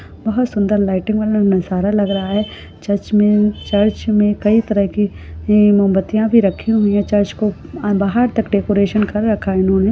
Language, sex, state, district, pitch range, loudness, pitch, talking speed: Hindi, female, Rajasthan, Churu, 200-215 Hz, -16 LUFS, 205 Hz, 165 wpm